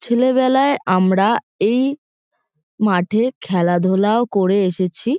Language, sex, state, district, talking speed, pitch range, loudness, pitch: Bengali, female, West Bengal, Kolkata, 80 wpm, 185-255 Hz, -17 LUFS, 205 Hz